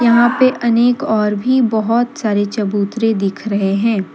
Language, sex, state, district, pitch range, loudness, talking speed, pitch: Hindi, female, Jharkhand, Deoghar, 205-240 Hz, -15 LUFS, 160 wpm, 225 Hz